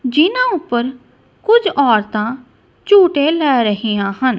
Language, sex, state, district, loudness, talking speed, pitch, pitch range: Punjabi, female, Punjab, Kapurthala, -15 LUFS, 110 wpm, 265 Hz, 225-335 Hz